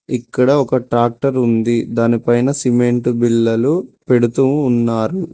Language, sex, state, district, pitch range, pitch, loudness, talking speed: Telugu, male, Telangana, Mahabubabad, 115-130 Hz, 120 Hz, -15 LUFS, 100 wpm